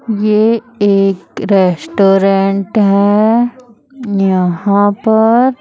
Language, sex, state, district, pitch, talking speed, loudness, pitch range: Hindi, female, Chhattisgarh, Raipur, 205 Hz, 65 wpm, -12 LUFS, 195-225 Hz